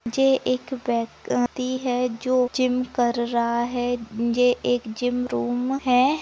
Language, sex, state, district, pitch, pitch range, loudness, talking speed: Hindi, female, Maharashtra, Nagpur, 245 Hz, 235-255 Hz, -23 LUFS, 125 wpm